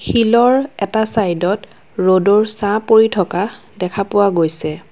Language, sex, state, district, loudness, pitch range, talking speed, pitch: Assamese, female, Assam, Kamrup Metropolitan, -15 LUFS, 185-220 Hz, 120 wpm, 205 Hz